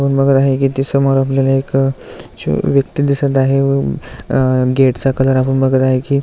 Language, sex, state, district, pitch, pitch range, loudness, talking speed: Marathi, male, Maharashtra, Aurangabad, 135 Hz, 130-135 Hz, -14 LUFS, 195 wpm